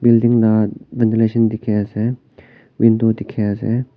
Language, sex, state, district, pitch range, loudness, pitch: Nagamese, male, Nagaland, Kohima, 110-120 Hz, -17 LUFS, 115 Hz